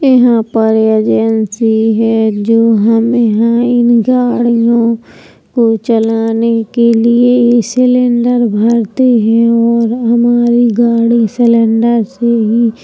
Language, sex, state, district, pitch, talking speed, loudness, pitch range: Hindi, female, Uttar Pradesh, Jalaun, 230 Hz, 110 wpm, -10 LUFS, 225-240 Hz